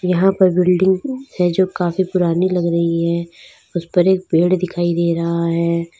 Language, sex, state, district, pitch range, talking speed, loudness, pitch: Hindi, female, Uttar Pradesh, Lalitpur, 170-185 Hz, 180 wpm, -17 LUFS, 175 Hz